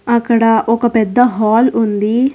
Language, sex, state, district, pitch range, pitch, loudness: Telugu, female, Telangana, Hyderabad, 220-240 Hz, 230 Hz, -13 LUFS